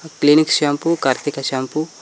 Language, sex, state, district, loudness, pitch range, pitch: Kannada, male, Karnataka, Koppal, -17 LUFS, 135-155 Hz, 145 Hz